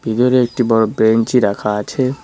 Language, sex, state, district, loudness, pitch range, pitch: Bengali, male, West Bengal, Cooch Behar, -15 LUFS, 110-125 Hz, 115 Hz